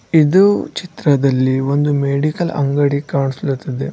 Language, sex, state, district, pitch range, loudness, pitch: Kannada, male, Karnataka, Bidar, 135-155 Hz, -16 LUFS, 145 Hz